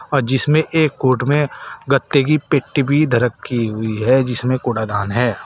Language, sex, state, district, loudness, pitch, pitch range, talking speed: Hindi, male, Uttar Pradesh, Saharanpur, -17 LUFS, 130 Hz, 120-145 Hz, 175 wpm